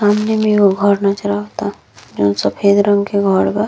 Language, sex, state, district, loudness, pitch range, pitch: Bhojpuri, female, Uttar Pradesh, Deoria, -15 LUFS, 200-205 Hz, 200 Hz